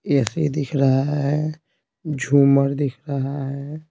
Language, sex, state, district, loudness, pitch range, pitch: Hindi, male, Bihar, Patna, -21 LUFS, 140-150 Hz, 140 Hz